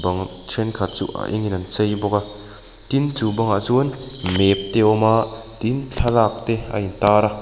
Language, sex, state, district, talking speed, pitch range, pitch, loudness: Mizo, male, Mizoram, Aizawl, 185 wpm, 100-115 Hz, 105 Hz, -19 LUFS